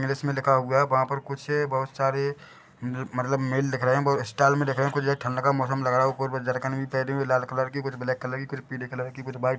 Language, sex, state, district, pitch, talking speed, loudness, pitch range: Hindi, male, Chhattisgarh, Bilaspur, 135 Hz, 300 wpm, -26 LUFS, 130-140 Hz